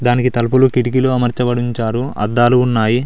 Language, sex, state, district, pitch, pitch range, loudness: Telugu, male, Telangana, Mahabubabad, 125 Hz, 120-125 Hz, -15 LUFS